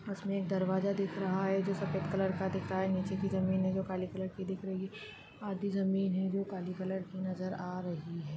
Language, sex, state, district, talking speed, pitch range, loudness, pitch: Hindi, female, Chhattisgarh, Balrampur, 245 wpm, 185-195 Hz, -35 LUFS, 190 Hz